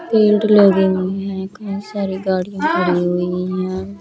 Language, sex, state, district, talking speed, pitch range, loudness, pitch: Hindi, female, Chandigarh, Chandigarh, 150 wpm, 185-200 Hz, -17 LUFS, 190 Hz